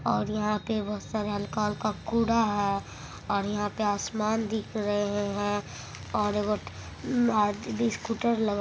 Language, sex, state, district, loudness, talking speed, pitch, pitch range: Maithili, male, Bihar, Supaul, -29 LUFS, 125 wpm, 210 Hz, 205-220 Hz